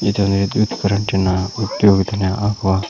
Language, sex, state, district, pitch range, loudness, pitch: Kannada, male, Karnataka, Koppal, 95-105 Hz, -17 LUFS, 100 Hz